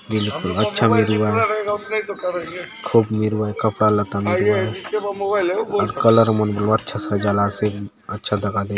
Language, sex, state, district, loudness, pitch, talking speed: Halbi, male, Chhattisgarh, Bastar, -20 LUFS, 110 Hz, 115 wpm